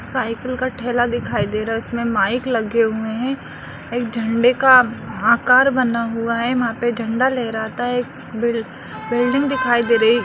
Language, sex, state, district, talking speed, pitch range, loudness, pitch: Hindi, female, Bihar, Jahanabad, 175 wpm, 230-250 Hz, -18 LUFS, 240 Hz